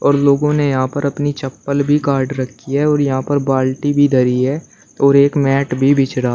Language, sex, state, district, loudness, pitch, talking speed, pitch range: Hindi, male, Uttar Pradesh, Shamli, -15 LUFS, 140 Hz, 225 wpm, 130-145 Hz